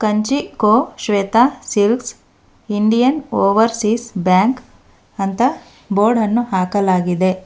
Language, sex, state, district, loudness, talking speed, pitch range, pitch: Kannada, female, Karnataka, Bangalore, -16 LUFS, 90 wpm, 195-235 Hz, 215 Hz